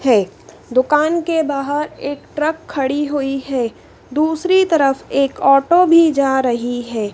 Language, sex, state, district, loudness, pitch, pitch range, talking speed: Hindi, female, Madhya Pradesh, Dhar, -16 LUFS, 280 Hz, 265-315 Hz, 145 wpm